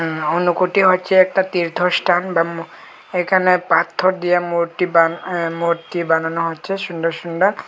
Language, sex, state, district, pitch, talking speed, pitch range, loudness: Bengali, male, Tripura, Unakoti, 175 Hz, 140 wpm, 165-185 Hz, -17 LUFS